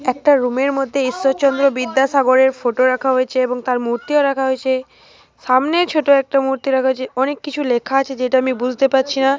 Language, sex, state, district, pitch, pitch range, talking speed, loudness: Bengali, female, Jharkhand, Jamtara, 265 Hz, 255-275 Hz, 175 wpm, -17 LUFS